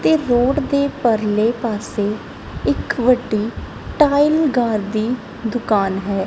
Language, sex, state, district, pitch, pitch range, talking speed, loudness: Punjabi, female, Punjab, Kapurthala, 235 Hz, 210-275 Hz, 115 wpm, -18 LUFS